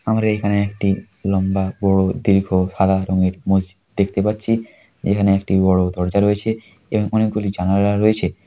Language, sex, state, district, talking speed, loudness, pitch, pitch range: Bengali, male, West Bengal, Paschim Medinipur, 150 wpm, -18 LUFS, 100 Hz, 95-105 Hz